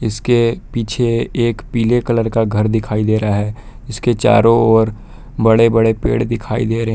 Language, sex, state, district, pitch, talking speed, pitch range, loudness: Hindi, male, Jharkhand, Palamu, 115 Hz, 175 wpm, 110-120 Hz, -15 LUFS